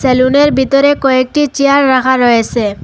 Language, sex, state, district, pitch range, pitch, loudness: Bengali, female, Assam, Hailakandi, 255-280 Hz, 265 Hz, -10 LUFS